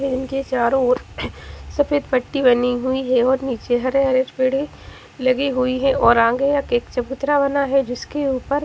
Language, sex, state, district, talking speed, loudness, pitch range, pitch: Hindi, female, Haryana, Charkhi Dadri, 165 wpm, -19 LUFS, 250-275 Hz, 260 Hz